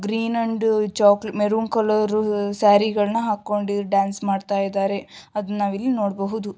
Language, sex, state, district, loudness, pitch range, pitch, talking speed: Kannada, female, Karnataka, Shimoga, -21 LUFS, 200-215 Hz, 210 Hz, 120 wpm